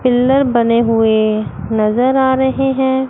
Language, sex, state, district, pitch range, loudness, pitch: Hindi, female, Chandigarh, Chandigarh, 225-265 Hz, -14 LUFS, 250 Hz